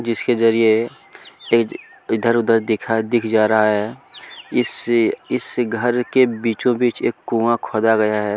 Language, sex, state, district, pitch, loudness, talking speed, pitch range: Hindi, male, Chhattisgarh, Kabirdham, 115 Hz, -18 LUFS, 115 wpm, 110-120 Hz